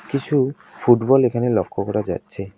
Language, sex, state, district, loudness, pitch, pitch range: Bengali, male, West Bengal, Alipurduar, -20 LUFS, 120 Hz, 100-135 Hz